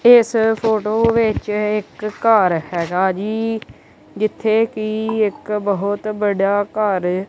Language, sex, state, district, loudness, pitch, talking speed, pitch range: Punjabi, male, Punjab, Kapurthala, -18 LUFS, 215 Hz, 105 wpm, 200-220 Hz